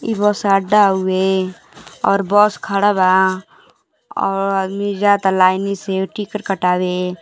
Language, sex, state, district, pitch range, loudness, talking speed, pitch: Hindi, female, Uttar Pradesh, Gorakhpur, 185-205 Hz, -16 LUFS, 125 wpm, 195 Hz